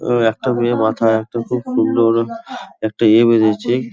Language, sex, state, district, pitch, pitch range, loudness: Bengali, male, West Bengal, Kolkata, 115 Hz, 110-125 Hz, -16 LUFS